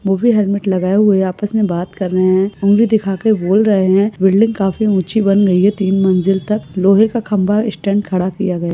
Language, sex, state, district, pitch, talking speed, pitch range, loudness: Hindi, female, Maharashtra, Pune, 195 Hz, 220 wpm, 190-210 Hz, -14 LUFS